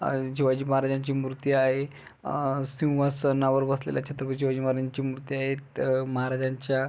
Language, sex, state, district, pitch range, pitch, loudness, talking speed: Marathi, male, Maharashtra, Pune, 130-135 Hz, 135 Hz, -27 LUFS, 140 wpm